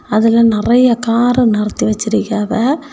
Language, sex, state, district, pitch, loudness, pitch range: Tamil, female, Tamil Nadu, Kanyakumari, 230 Hz, -13 LUFS, 215-245 Hz